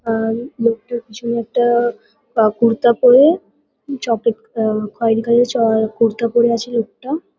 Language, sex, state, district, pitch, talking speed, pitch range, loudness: Bengali, female, West Bengal, Kolkata, 230 Hz, 145 wpm, 225-240 Hz, -16 LUFS